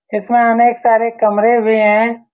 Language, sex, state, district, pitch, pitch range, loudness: Hindi, male, Bihar, Saran, 230 Hz, 215-235 Hz, -13 LUFS